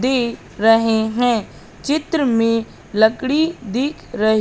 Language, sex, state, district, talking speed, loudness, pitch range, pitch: Hindi, female, Madhya Pradesh, Katni, 110 wpm, -18 LUFS, 220-270 Hz, 235 Hz